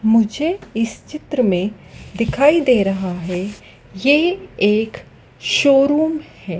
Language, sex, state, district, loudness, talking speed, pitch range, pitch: Hindi, female, Madhya Pradesh, Dhar, -17 LUFS, 110 wpm, 200-300 Hz, 225 Hz